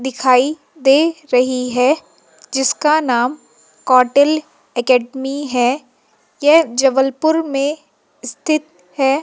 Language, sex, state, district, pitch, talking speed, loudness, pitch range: Hindi, female, Madhya Pradesh, Umaria, 270 Hz, 90 wpm, -16 LUFS, 255-300 Hz